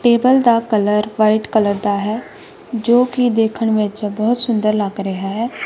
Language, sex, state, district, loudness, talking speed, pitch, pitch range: Punjabi, female, Punjab, Kapurthala, -16 LUFS, 170 wpm, 220 Hz, 210-240 Hz